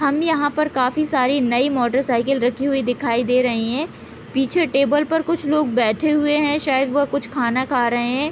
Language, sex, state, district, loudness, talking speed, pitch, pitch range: Hindi, female, Bihar, Gopalganj, -19 LUFS, 210 wpm, 275 Hz, 250-295 Hz